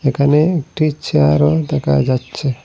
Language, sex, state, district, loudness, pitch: Bengali, male, Assam, Hailakandi, -15 LUFS, 135 Hz